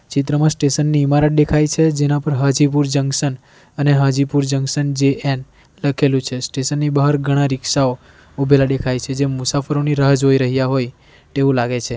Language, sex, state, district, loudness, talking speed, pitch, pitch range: Gujarati, male, Gujarat, Valsad, -17 LUFS, 170 wpm, 140 Hz, 135-145 Hz